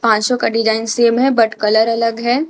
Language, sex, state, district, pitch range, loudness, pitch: Hindi, female, Jharkhand, Garhwa, 220-240 Hz, -15 LUFS, 230 Hz